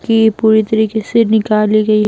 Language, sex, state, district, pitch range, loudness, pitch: Hindi, female, Bihar, Patna, 215-220 Hz, -12 LUFS, 220 Hz